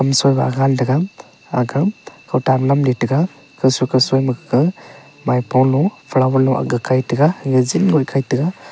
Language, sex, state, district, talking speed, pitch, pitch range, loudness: Wancho, male, Arunachal Pradesh, Longding, 160 wpm, 130 Hz, 130-145 Hz, -17 LUFS